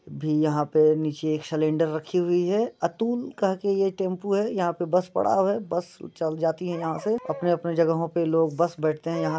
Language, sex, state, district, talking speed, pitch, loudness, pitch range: Hindi, female, Bihar, Muzaffarpur, 215 wpm, 170 Hz, -25 LUFS, 160-190 Hz